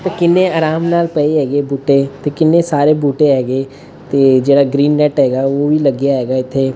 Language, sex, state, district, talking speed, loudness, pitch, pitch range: Punjabi, male, Punjab, Fazilka, 205 wpm, -13 LUFS, 140 Hz, 135-155 Hz